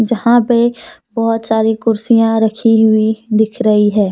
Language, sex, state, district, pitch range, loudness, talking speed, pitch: Hindi, female, Jharkhand, Deoghar, 220-230 Hz, -13 LUFS, 145 wpm, 225 Hz